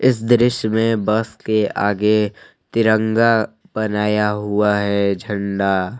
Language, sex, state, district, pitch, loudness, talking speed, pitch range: Hindi, male, Jharkhand, Palamu, 105 Hz, -18 LUFS, 120 wpm, 105-115 Hz